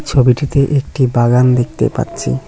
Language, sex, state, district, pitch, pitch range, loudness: Bengali, male, West Bengal, Cooch Behar, 125 Hz, 120-140 Hz, -14 LUFS